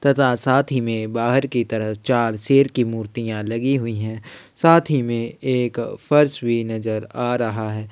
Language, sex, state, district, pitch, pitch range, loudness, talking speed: Hindi, male, Chhattisgarh, Sukma, 120 Hz, 110-135 Hz, -20 LUFS, 180 wpm